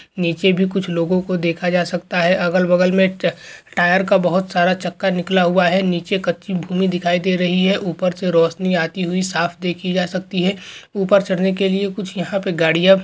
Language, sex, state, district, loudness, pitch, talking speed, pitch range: Hindi, male, West Bengal, Kolkata, -18 LUFS, 185 Hz, 195 wpm, 175-190 Hz